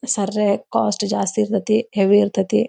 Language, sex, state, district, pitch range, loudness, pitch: Kannada, female, Karnataka, Belgaum, 200-215 Hz, -19 LUFS, 205 Hz